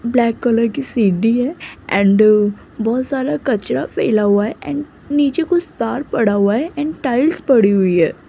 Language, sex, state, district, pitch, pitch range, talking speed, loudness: Hindi, female, Rajasthan, Jaipur, 235 Hz, 210-285 Hz, 165 wpm, -16 LUFS